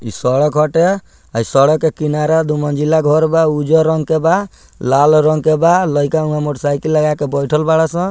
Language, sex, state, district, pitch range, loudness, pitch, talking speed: Bhojpuri, male, Bihar, Muzaffarpur, 145-160 Hz, -14 LUFS, 155 Hz, 205 wpm